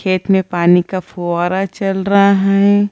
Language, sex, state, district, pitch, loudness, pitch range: Hindi, female, Bihar, Gaya, 190 Hz, -14 LUFS, 180-200 Hz